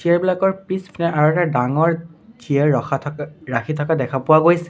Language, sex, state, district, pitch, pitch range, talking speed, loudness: Assamese, male, Assam, Sonitpur, 160 Hz, 145-170 Hz, 180 wpm, -19 LUFS